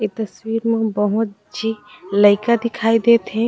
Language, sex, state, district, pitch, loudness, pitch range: Chhattisgarhi, female, Chhattisgarh, Raigarh, 220 Hz, -18 LUFS, 210-230 Hz